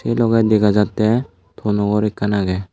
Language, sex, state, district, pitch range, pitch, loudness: Chakma, male, Tripura, Dhalai, 100-110 Hz, 105 Hz, -17 LUFS